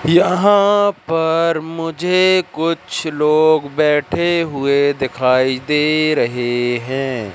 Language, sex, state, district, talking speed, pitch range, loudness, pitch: Hindi, male, Madhya Pradesh, Katni, 90 wpm, 140-170 Hz, -16 LUFS, 155 Hz